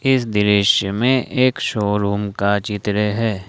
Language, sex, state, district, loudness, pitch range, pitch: Hindi, male, Jharkhand, Ranchi, -18 LUFS, 100-115 Hz, 105 Hz